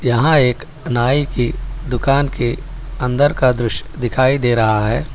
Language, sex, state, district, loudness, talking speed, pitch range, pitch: Hindi, male, Telangana, Hyderabad, -17 LUFS, 150 wpm, 120-140 Hz, 125 Hz